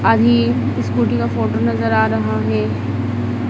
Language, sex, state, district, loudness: Hindi, female, Madhya Pradesh, Dhar, -17 LUFS